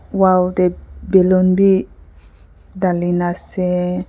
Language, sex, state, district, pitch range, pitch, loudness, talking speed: Nagamese, female, Nagaland, Kohima, 175-185 Hz, 180 Hz, -16 LUFS, 90 wpm